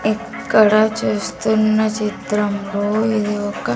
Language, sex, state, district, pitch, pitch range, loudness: Telugu, female, Andhra Pradesh, Sri Satya Sai, 210 Hz, 205-215 Hz, -18 LUFS